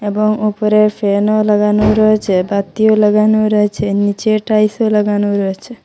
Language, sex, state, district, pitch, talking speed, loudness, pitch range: Bengali, female, Assam, Hailakandi, 210 Hz, 125 wpm, -13 LUFS, 205-215 Hz